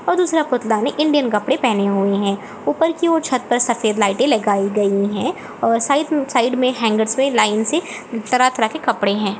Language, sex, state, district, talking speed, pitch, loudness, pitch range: Hindi, female, Chhattisgarh, Jashpur, 205 wpm, 235 Hz, -18 LUFS, 205-275 Hz